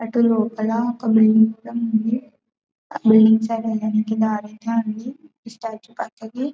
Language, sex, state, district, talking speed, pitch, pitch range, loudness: Telugu, female, Telangana, Karimnagar, 130 wpm, 225 Hz, 220-230 Hz, -19 LUFS